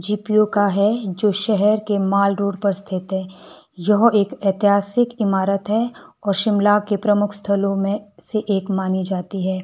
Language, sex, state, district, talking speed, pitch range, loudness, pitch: Hindi, male, Himachal Pradesh, Shimla, 160 wpm, 195-210 Hz, -19 LUFS, 200 Hz